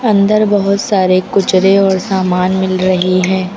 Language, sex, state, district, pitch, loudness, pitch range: Hindi, female, Uttar Pradesh, Lucknow, 190 Hz, -12 LUFS, 185-200 Hz